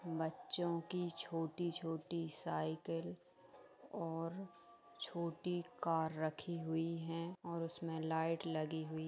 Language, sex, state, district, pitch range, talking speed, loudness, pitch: Hindi, female, Bihar, Madhepura, 160-170 Hz, 100 wpm, -43 LUFS, 165 Hz